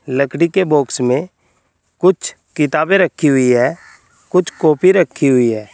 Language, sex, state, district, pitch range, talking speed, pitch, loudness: Hindi, male, Uttar Pradesh, Saharanpur, 130-180 Hz, 145 wpm, 150 Hz, -15 LUFS